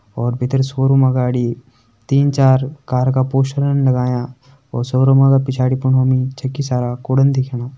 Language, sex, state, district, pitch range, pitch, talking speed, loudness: Hindi, male, Uttarakhand, Tehri Garhwal, 125-135 Hz, 130 Hz, 155 wpm, -16 LUFS